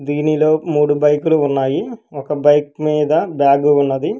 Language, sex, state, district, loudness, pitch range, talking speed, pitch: Telugu, male, Telangana, Hyderabad, -15 LUFS, 145-155 Hz, 130 wpm, 150 Hz